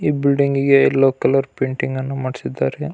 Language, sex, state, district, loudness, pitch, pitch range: Kannada, male, Karnataka, Belgaum, -18 LUFS, 135 Hz, 130-140 Hz